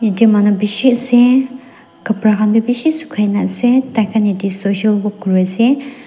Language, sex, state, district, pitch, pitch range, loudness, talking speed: Nagamese, female, Nagaland, Dimapur, 220 Hz, 205-250 Hz, -14 LUFS, 170 wpm